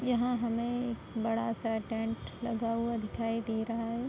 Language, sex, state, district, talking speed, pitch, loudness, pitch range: Hindi, female, Uttar Pradesh, Budaun, 175 wpm, 230 Hz, -34 LUFS, 225-235 Hz